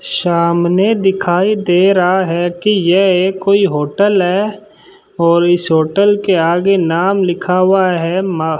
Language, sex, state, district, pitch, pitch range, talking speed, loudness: Hindi, male, Rajasthan, Bikaner, 185 Hz, 175-195 Hz, 155 wpm, -13 LUFS